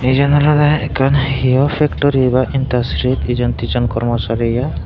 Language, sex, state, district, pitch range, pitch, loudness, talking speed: Chakma, male, Tripura, Dhalai, 120-140 Hz, 130 Hz, -15 LUFS, 150 wpm